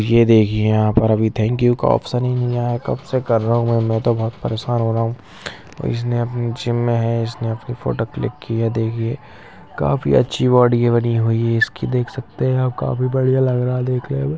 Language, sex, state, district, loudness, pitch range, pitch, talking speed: Hindi, male, Bihar, Saharsa, -18 LUFS, 115-125 Hz, 120 Hz, 230 wpm